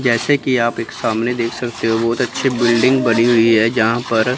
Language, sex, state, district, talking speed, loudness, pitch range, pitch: Hindi, female, Chandigarh, Chandigarh, 220 wpm, -16 LUFS, 115-125 Hz, 120 Hz